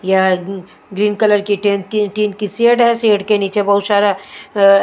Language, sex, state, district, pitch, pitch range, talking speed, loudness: Hindi, female, Haryana, Charkhi Dadri, 205 Hz, 195-210 Hz, 175 wpm, -15 LUFS